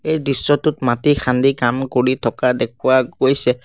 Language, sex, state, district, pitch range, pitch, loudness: Assamese, male, Assam, Sonitpur, 125-140 Hz, 130 Hz, -17 LUFS